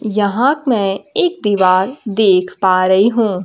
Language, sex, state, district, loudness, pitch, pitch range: Hindi, female, Bihar, Kaimur, -14 LUFS, 205 Hz, 190-240 Hz